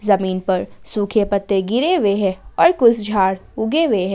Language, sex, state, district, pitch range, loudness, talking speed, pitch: Hindi, female, Jharkhand, Ranchi, 190-220 Hz, -18 LUFS, 190 wpm, 205 Hz